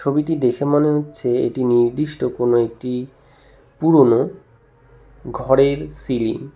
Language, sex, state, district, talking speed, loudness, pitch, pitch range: Bengali, male, West Bengal, Cooch Behar, 110 wpm, -18 LUFS, 140 Hz, 125-145 Hz